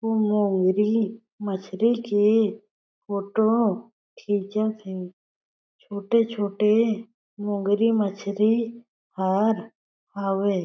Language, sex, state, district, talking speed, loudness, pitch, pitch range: Chhattisgarhi, female, Chhattisgarh, Jashpur, 60 wpm, -24 LUFS, 210 Hz, 200-225 Hz